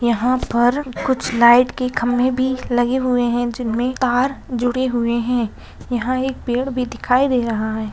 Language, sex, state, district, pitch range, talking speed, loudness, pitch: Hindi, female, Bihar, Lakhisarai, 240-255 Hz, 175 wpm, -18 LUFS, 245 Hz